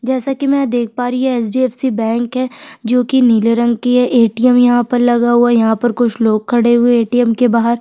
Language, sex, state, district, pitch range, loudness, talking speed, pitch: Hindi, female, Chhattisgarh, Sukma, 235-250 Hz, -13 LUFS, 275 wpm, 240 Hz